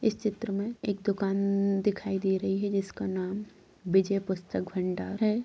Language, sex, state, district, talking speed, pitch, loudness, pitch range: Hindi, female, Bihar, Sitamarhi, 165 wpm, 200 Hz, -30 LUFS, 195-205 Hz